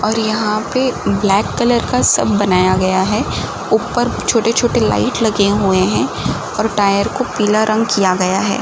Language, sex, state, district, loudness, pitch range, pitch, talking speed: Hindi, female, Uttar Pradesh, Gorakhpur, -15 LUFS, 195-220 Hz, 210 Hz, 175 wpm